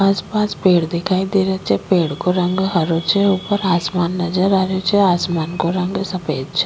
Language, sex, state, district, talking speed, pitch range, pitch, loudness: Rajasthani, female, Rajasthan, Nagaur, 205 wpm, 175-195 Hz, 185 Hz, -18 LUFS